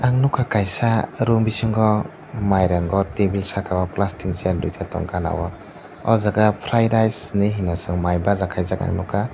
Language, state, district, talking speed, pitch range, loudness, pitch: Kokborok, Tripura, Dhalai, 175 wpm, 90-110 Hz, -20 LUFS, 100 Hz